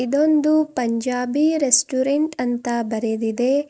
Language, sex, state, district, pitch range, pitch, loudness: Kannada, female, Karnataka, Bidar, 240-295 Hz, 255 Hz, -20 LUFS